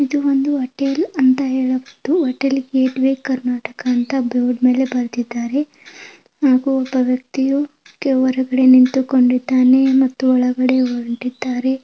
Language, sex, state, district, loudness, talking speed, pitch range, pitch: Kannada, female, Karnataka, Gulbarga, -17 LUFS, 105 wpm, 255-275 Hz, 260 Hz